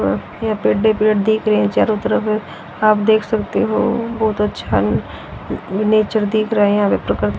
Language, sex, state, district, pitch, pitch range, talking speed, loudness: Hindi, female, Haryana, Rohtak, 215 Hz, 205-220 Hz, 160 wpm, -17 LUFS